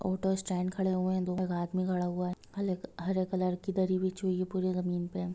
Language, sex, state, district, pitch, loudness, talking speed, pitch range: Hindi, female, Bihar, Sitamarhi, 185 Hz, -33 LUFS, 255 wpm, 180-185 Hz